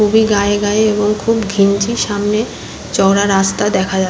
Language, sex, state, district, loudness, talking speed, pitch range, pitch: Bengali, female, West Bengal, Paschim Medinipur, -14 LUFS, 160 wpm, 200-210 Hz, 205 Hz